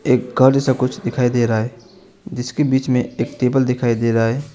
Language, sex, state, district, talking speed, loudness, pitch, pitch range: Hindi, male, West Bengal, Alipurduar, 225 wpm, -18 LUFS, 125 Hz, 120-135 Hz